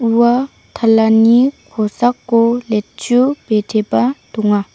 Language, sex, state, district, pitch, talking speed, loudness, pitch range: Garo, female, Meghalaya, South Garo Hills, 230 Hz, 75 wpm, -14 LUFS, 220-245 Hz